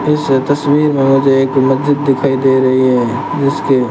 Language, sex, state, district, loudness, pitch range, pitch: Hindi, male, Rajasthan, Bikaner, -12 LUFS, 130-145 Hz, 135 Hz